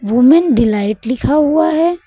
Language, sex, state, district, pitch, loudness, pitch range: Hindi, female, Uttar Pradesh, Lucknow, 280 Hz, -13 LUFS, 225-320 Hz